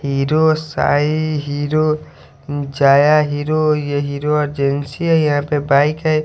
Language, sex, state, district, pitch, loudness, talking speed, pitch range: Hindi, male, Haryana, Charkhi Dadri, 150 Hz, -16 LUFS, 125 wpm, 145-155 Hz